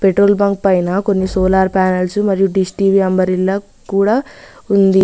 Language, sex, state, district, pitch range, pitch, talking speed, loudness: Telugu, female, Telangana, Mahabubabad, 190-200 Hz, 195 Hz, 145 wpm, -14 LUFS